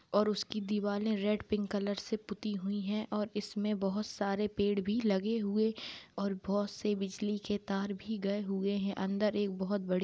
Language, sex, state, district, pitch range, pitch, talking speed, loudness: Hindi, female, Bihar, Purnia, 200-210 Hz, 205 Hz, 185 wpm, -35 LUFS